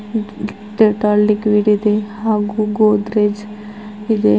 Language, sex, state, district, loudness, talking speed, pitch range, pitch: Kannada, female, Karnataka, Bidar, -16 LUFS, 70 wpm, 210-215 Hz, 210 Hz